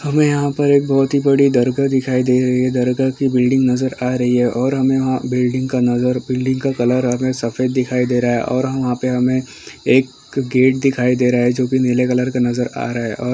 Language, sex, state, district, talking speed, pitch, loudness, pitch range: Hindi, male, Chhattisgarh, Sukma, 245 wpm, 125 Hz, -17 LUFS, 125-130 Hz